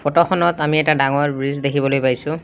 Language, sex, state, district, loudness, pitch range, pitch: Assamese, male, Assam, Kamrup Metropolitan, -17 LUFS, 140-155 Hz, 145 Hz